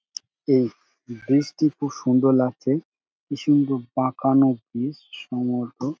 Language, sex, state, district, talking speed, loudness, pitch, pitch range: Bengali, male, West Bengal, Dakshin Dinajpur, 110 wpm, -23 LUFS, 130 Hz, 125-140 Hz